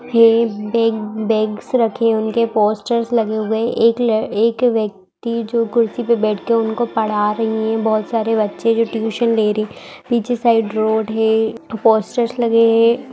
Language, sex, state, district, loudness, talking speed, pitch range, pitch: Hindi, female, Bihar, Bhagalpur, -17 LUFS, 160 wpm, 220-230 Hz, 225 Hz